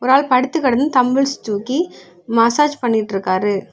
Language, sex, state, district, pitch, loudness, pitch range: Tamil, female, Tamil Nadu, Kanyakumari, 245 Hz, -17 LUFS, 205-270 Hz